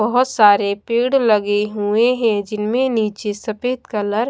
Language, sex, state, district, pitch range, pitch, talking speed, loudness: Hindi, female, Bihar, Katihar, 210-245 Hz, 215 Hz, 155 wpm, -17 LUFS